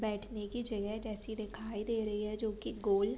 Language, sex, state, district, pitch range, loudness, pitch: Hindi, female, Uttar Pradesh, Deoria, 210-220 Hz, -38 LUFS, 215 Hz